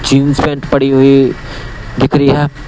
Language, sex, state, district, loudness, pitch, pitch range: Hindi, male, Punjab, Pathankot, -11 LUFS, 135 Hz, 130-145 Hz